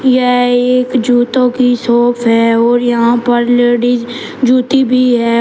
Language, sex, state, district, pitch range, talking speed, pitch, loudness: Hindi, male, Uttar Pradesh, Shamli, 240-250 Hz, 145 wpm, 245 Hz, -11 LUFS